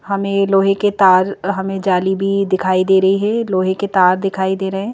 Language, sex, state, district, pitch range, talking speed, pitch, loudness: Hindi, female, Madhya Pradesh, Bhopal, 190-200 Hz, 230 wpm, 195 Hz, -15 LUFS